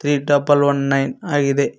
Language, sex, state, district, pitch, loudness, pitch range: Kannada, male, Karnataka, Koppal, 145 Hz, -17 LUFS, 140-145 Hz